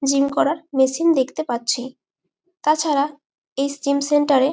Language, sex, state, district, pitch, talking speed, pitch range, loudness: Bengali, female, West Bengal, Malda, 280 Hz, 120 wpm, 270-305 Hz, -20 LUFS